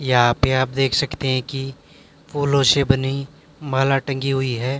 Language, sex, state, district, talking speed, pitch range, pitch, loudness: Hindi, male, Haryana, Jhajjar, 175 wpm, 130-140 Hz, 135 Hz, -20 LUFS